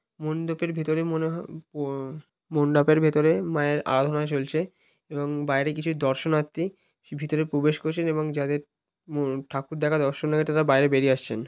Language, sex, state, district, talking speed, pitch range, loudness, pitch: Bengali, male, West Bengal, Malda, 130 wpm, 145-160 Hz, -25 LUFS, 150 Hz